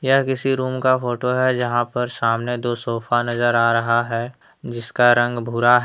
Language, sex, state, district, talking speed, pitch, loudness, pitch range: Hindi, male, Jharkhand, Deoghar, 195 wpm, 120 Hz, -20 LUFS, 120-125 Hz